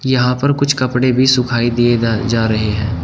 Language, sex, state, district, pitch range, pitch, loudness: Hindi, male, Uttar Pradesh, Shamli, 115-130 Hz, 120 Hz, -14 LUFS